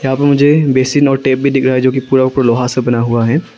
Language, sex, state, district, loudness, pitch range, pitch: Hindi, male, Arunachal Pradesh, Longding, -12 LUFS, 125-140 Hz, 130 Hz